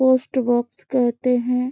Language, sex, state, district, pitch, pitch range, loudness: Hindi, female, Chhattisgarh, Bastar, 250 Hz, 240-255 Hz, -21 LUFS